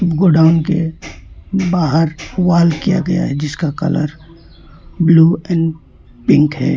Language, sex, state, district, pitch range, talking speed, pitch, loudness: Hindi, male, West Bengal, Alipurduar, 155-175 Hz, 115 wpm, 165 Hz, -14 LUFS